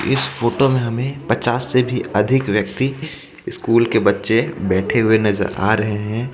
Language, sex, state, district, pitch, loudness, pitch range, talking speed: Hindi, male, Jharkhand, Ranchi, 115 Hz, -17 LUFS, 105-125 Hz, 170 wpm